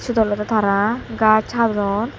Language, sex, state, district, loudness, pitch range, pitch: Chakma, female, Tripura, Dhalai, -18 LUFS, 205-225 Hz, 215 Hz